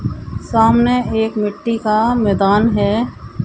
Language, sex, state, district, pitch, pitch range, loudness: Hindi, female, Haryana, Jhajjar, 220 Hz, 210-230 Hz, -16 LUFS